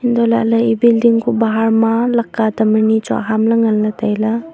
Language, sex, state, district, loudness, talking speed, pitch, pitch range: Wancho, female, Arunachal Pradesh, Longding, -14 LUFS, 200 wpm, 225 Hz, 220-235 Hz